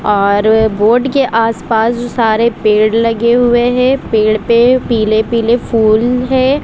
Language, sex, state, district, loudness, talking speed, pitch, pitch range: Hindi, female, Bihar, West Champaran, -11 LUFS, 145 wpm, 230 Hz, 220-245 Hz